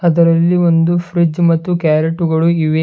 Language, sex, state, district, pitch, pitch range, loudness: Kannada, male, Karnataka, Bidar, 170 Hz, 160-170 Hz, -13 LUFS